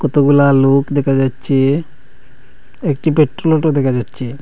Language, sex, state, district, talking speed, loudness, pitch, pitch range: Bengali, male, Assam, Hailakandi, 95 wpm, -14 LUFS, 140 Hz, 130-145 Hz